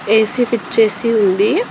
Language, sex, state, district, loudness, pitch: Telugu, female, Telangana, Hyderabad, -14 LUFS, 235 Hz